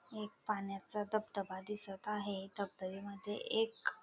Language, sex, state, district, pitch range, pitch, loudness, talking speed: Marathi, female, Maharashtra, Dhule, 195-215 Hz, 210 Hz, -41 LUFS, 105 wpm